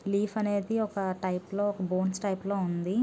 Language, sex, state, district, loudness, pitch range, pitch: Telugu, female, Andhra Pradesh, Guntur, -30 LUFS, 185-205 Hz, 195 Hz